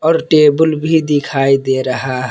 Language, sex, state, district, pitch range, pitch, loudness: Hindi, male, Jharkhand, Palamu, 135-155 Hz, 145 Hz, -13 LUFS